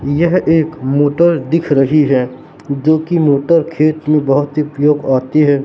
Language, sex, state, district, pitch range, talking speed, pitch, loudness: Hindi, male, Madhya Pradesh, Katni, 140-160 Hz, 170 wpm, 150 Hz, -13 LUFS